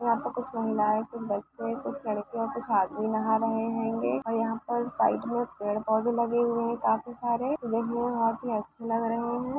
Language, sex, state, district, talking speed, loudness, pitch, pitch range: Hindi, female, Andhra Pradesh, Chittoor, 145 wpm, -29 LUFS, 230 Hz, 220-235 Hz